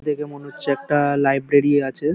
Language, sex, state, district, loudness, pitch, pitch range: Bengali, male, West Bengal, Paschim Medinipur, -20 LUFS, 145 Hz, 140-145 Hz